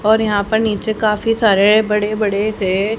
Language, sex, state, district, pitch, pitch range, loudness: Hindi, female, Haryana, Jhajjar, 215 Hz, 205-220 Hz, -15 LUFS